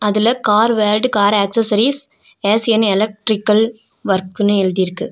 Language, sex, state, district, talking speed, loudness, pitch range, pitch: Tamil, female, Tamil Nadu, Nilgiris, 105 wpm, -15 LUFS, 205-225 Hz, 210 Hz